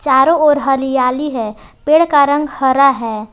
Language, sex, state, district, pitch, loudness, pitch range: Hindi, female, Jharkhand, Palamu, 270 Hz, -13 LUFS, 255-295 Hz